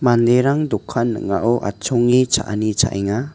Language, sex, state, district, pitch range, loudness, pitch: Garo, male, Meghalaya, West Garo Hills, 105-125 Hz, -18 LUFS, 120 Hz